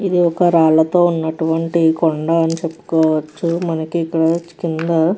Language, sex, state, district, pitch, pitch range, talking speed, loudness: Telugu, female, Andhra Pradesh, Krishna, 165 Hz, 160-170 Hz, 130 wpm, -16 LUFS